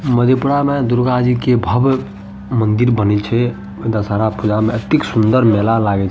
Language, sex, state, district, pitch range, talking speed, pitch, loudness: Maithili, male, Bihar, Madhepura, 105-125 Hz, 165 wpm, 115 Hz, -15 LUFS